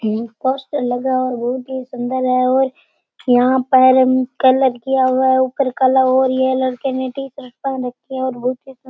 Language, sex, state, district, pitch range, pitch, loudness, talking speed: Rajasthani, male, Rajasthan, Churu, 255-260 Hz, 260 Hz, -17 LUFS, 150 wpm